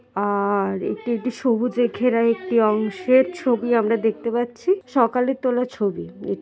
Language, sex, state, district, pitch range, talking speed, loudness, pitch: Bengali, female, West Bengal, Jhargram, 220-250 Hz, 150 wpm, -21 LUFS, 235 Hz